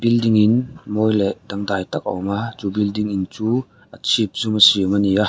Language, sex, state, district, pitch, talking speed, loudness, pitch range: Mizo, male, Mizoram, Aizawl, 105 Hz, 215 wpm, -19 LUFS, 100-110 Hz